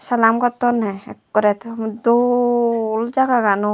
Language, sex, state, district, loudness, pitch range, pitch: Chakma, female, Tripura, West Tripura, -18 LUFS, 220-245 Hz, 230 Hz